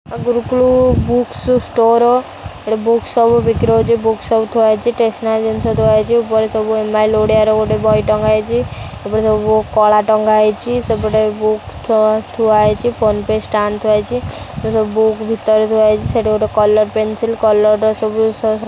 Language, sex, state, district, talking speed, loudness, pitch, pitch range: Odia, female, Odisha, Khordha, 165 wpm, -14 LUFS, 220 Hz, 215-230 Hz